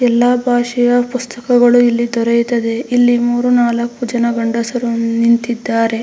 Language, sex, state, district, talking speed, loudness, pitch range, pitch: Kannada, female, Karnataka, Mysore, 110 wpm, -14 LUFS, 235-245 Hz, 240 Hz